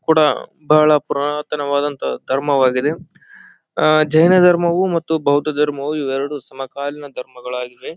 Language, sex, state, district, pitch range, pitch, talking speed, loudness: Kannada, male, Karnataka, Bijapur, 140-155 Hz, 145 Hz, 90 wpm, -17 LUFS